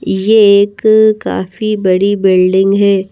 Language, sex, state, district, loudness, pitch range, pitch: Hindi, female, Madhya Pradesh, Bhopal, -10 LUFS, 190-215 Hz, 200 Hz